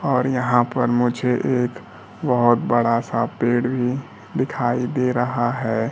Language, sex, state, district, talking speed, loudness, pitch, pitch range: Hindi, male, Bihar, Kaimur, 140 wpm, -21 LUFS, 125 Hz, 120-125 Hz